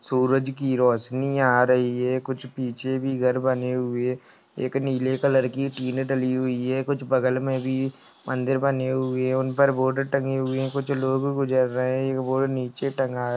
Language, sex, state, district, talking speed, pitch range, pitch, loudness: Hindi, male, Uttar Pradesh, Budaun, 190 wpm, 130-135 Hz, 130 Hz, -24 LUFS